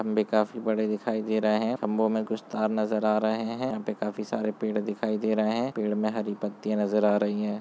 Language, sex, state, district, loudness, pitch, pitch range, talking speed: Hindi, male, Bihar, Gopalganj, -28 LUFS, 110 Hz, 105-110 Hz, 250 wpm